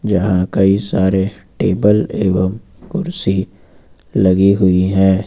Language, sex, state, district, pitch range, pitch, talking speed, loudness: Hindi, male, Uttar Pradesh, Lucknow, 95-100 Hz, 95 Hz, 100 wpm, -15 LUFS